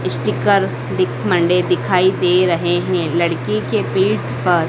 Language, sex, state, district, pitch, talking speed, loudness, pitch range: Hindi, female, Madhya Pradesh, Dhar, 175 Hz, 140 wpm, -16 LUFS, 125-180 Hz